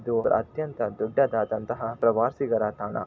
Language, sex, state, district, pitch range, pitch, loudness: Kannada, male, Karnataka, Shimoga, 110-125 Hz, 115 Hz, -26 LUFS